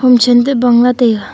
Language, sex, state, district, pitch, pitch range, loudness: Wancho, female, Arunachal Pradesh, Longding, 245 Hz, 240-250 Hz, -10 LUFS